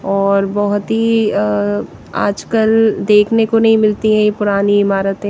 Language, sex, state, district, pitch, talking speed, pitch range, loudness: Hindi, female, Punjab, Kapurthala, 205 Hz, 135 wpm, 200-220 Hz, -14 LUFS